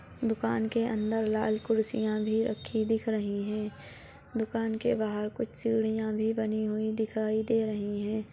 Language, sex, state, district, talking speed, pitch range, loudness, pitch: Hindi, female, Chhattisgarh, Balrampur, 150 wpm, 215-225 Hz, -30 LUFS, 220 Hz